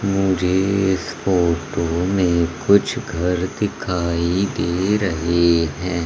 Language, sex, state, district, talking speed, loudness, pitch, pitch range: Hindi, male, Madhya Pradesh, Umaria, 100 wpm, -19 LUFS, 90 Hz, 85-95 Hz